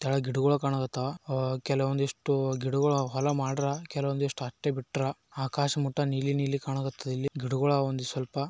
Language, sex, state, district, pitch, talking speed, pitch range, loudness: Kannada, male, Karnataka, Bijapur, 135 Hz, 155 wpm, 135-140 Hz, -30 LUFS